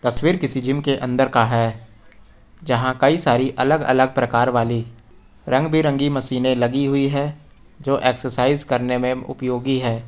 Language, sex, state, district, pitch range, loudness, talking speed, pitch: Hindi, male, Uttar Pradesh, Lucknow, 120-140 Hz, -19 LUFS, 155 wpm, 130 Hz